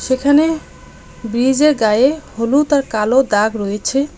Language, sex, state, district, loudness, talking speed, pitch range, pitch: Bengali, female, West Bengal, Cooch Behar, -15 LUFS, 115 wpm, 220-285 Hz, 260 Hz